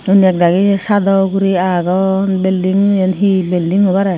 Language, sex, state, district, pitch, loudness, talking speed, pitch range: Chakma, female, Tripura, Dhalai, 190 Hz, -13 LUFS, 145 wpm, 185-195 Hz